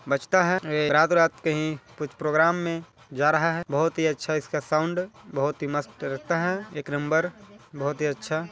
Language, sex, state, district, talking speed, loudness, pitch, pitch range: Hindi, male, Chhattisgarh, Balrampur, 190 wpm, -25 LUFS, 155 Hz, 145-170 Hz